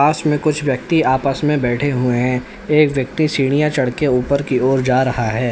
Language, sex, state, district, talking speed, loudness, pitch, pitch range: Hindi, male, Uttar Pradesh, Lalitpur, 215 wpm, -17 LUFS, 135 Hz, 125-150 Hz